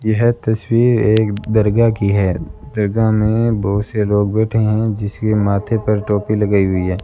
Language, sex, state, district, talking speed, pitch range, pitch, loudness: Hindi, male, Rajasthan, Bikaner, 170 wpm, 100-110 Hz, 105 Hz, -16 LUFS